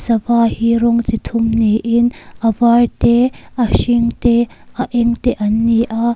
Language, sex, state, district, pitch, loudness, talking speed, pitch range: Mizo, female, Mizoram, Aizawl, 235 Hz, -15 LUFS, 175 wpm, 230-240 Hz